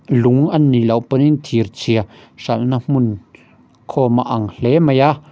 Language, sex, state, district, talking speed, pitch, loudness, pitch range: Mizo, male, Mizoram, Aizawl, 160 wpm, 125 Hz, -16 LUFS, 115-145 Hz